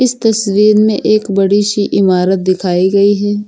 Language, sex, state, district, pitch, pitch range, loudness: Hindi, female, Uttar Pradesh, Lucknow, 205 Hz, 195-215 Hz, -11 LUFS